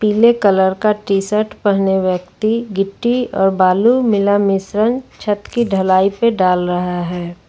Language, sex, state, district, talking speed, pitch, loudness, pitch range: Hindi, female, Jharkhand, Ranchi, 150 wpm, 200 Hz, -15 LUFS, 190-215 Hz